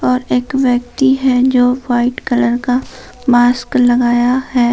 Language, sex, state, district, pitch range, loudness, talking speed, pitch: Hindi, female, Jharkhand, Palamu, 240-255 Hz, -14 LUFS, 140 wpm, 245 Hz